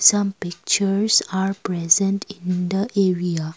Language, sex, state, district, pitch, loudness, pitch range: English, female, Assam, Kamrup Metropolitan, 195 Hz, -20 LUFS, 180-200 Hz